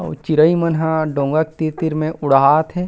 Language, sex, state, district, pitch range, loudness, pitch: Chhattisgarhi, male, Chhattisgarh, Rajnandgaon, 155-160 Hz, -16 LUFS, 155 Hz